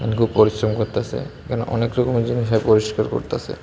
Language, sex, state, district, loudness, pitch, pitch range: Bengali, male, Tripura, West Tripura, -20 LUFS, 115 Hz, 110-120 Hz